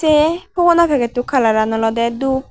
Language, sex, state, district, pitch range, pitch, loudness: Chakma, female, Tripura, Unakoti, 235-315 Hz, 265 Hz, -16 LUFS